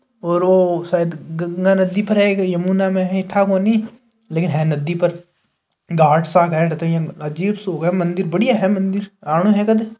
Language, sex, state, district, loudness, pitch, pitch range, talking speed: Hindi, male, Rajasthan, Nagaur, -17 LUFS, 180 Hz, 170-200 Hz, 185 wpm